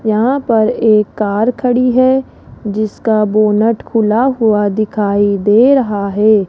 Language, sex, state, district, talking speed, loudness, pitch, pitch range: Hindi, female, Rajasthan, Jaipur, 130 wpm, -13 LUFS, 215 Hz, 210-235 Hz